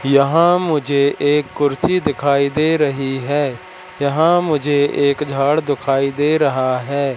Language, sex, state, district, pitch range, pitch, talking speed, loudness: Hindi, male, Madhya Pradesh, Katni, 140-155 Hz, 145 Hz, 135 wpm, -16 LUFS